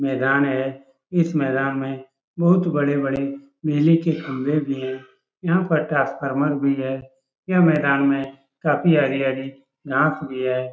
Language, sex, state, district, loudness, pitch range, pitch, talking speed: Hindi, male, Bihar, Supaul, -21 LUFS, 135-150 Hz, 140 Hz, 140 wpm